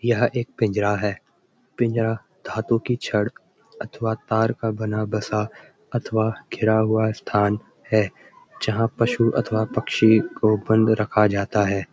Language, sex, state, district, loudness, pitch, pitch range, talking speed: Hindi, male, Uttarakhand, Uttarkashi, -22 LUFS, 110 Hz, 105-115 Hz, 135 wpm